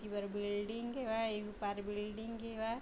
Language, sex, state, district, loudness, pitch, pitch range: Chhattisgarhi, female, Chhattisgarh, Bilaspur, -40 LUFS, 215 Hz, 205-225 Hz